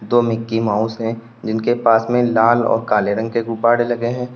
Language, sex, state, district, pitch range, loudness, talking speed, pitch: Hindi, male, Uttar Pradesh, Lalitpur, 115-120 Hz, -17 LUFS, 205 wpm, 115 Hz